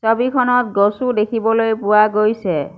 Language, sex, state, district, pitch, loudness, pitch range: Assamese, female, Assam, Kamrup Metropolitan, 225 Hz, -16 LUFS, 210-245 Hz